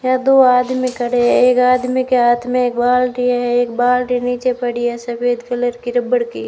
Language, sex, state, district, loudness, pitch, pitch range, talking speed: Hindi, female, Rajasthan, Bikaner, -15 LUFS, 245 Hz, 245-250 Hz, 215 wpm